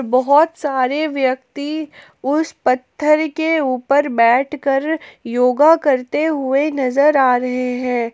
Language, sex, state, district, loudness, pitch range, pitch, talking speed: Hindi, female, Jharkhand, Palamu, -17 LUFS, 255-300 Hz, 275 Hz, 120 wpm